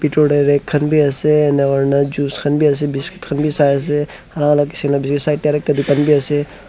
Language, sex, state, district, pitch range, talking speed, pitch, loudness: Nagamese, male, Nagaland, Dimapur, 140-150 Hz, 205 wpm, 145 Hz, -16 LUFS